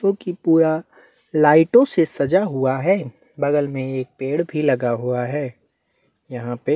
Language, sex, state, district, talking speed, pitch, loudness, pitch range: Hindi, male, Chhattisgarh, Bastar, 150 wpm, 145 Hz, -19 LUFS, 130-165 Hz